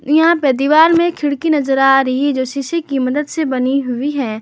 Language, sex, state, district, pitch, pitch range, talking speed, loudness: Hindi, female, Jharkhand, Garhwa, 280 Hz, 270-310 Hz, 230 wpm, -15 LUFS